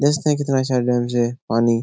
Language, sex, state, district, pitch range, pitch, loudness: Hindi, male, Bihar, Jahanabad, 120-140 Hz, 125 Hz, -20 LUFS